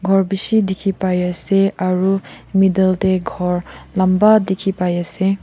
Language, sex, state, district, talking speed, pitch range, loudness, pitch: Nagamese, female, Nagaland, Kohima, 100 wpm, 185-195 Hz, -17 LUFS, 190 Hz